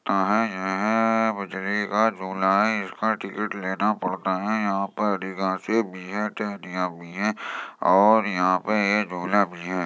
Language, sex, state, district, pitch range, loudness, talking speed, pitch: Hindi, male, Uttar Pradesh, Jyotiba Phule Nagar, 95-105 Hz, -24 LUFS, 85 wpm, 100 Hz